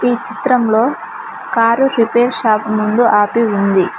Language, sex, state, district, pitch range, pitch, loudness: Telugu, female, Telangana, Mahabubabad, 215-245 Hz, 230 Hz, -14 LUFS